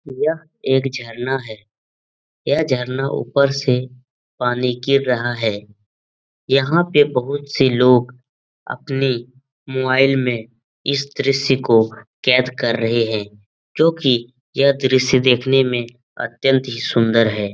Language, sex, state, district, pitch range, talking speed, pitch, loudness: Hindi, male, Bihar, Jamui, 115-135 Hz, 135 wpm, 125 Hz, -18 LUFS